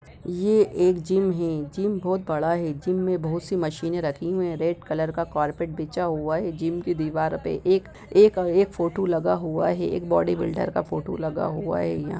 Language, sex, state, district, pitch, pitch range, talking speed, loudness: Hindi, female, Bihar, Sitamarhi, 170 Hz, 160-185 Hz, 210 wpm, -24 LUFS